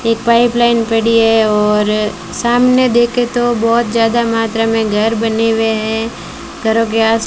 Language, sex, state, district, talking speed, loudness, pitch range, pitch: Hindi, female, Rajasthan, Bikaner, 175 wpm, -13 LUFS, 220-235 Hz, 225 Hz